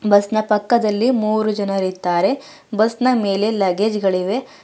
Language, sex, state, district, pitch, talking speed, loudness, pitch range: Kannada, female, Karnataka, Bangalore, 215 Hz, 130 wpm, -18 LUFS, 200-225 Hz